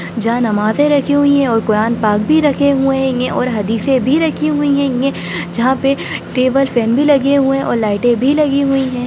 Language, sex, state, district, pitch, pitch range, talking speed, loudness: Hindi, female, Bihar, Sitamarhi, 265 Hz, 230-280 Hz, 210 wpm, -14 LUFS